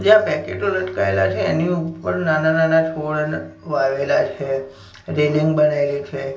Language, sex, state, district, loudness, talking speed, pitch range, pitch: Gujarati, male, Gujarat, Gandhinagar, -19 LUFS, 130 wpm, 135-165 Hz, 150 Hz